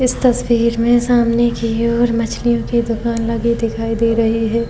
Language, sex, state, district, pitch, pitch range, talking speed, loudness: Hindi, female, Uttar Pradesh, Jyotiba Phule Nagar, 235 Hz, 230-235 Hz, 180 wpm, -16 LUFS